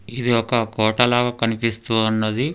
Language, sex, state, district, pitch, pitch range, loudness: Telugu, male, Telangana, Hyderabad, 115 Hz, 110-120 Hz, -19 LUFS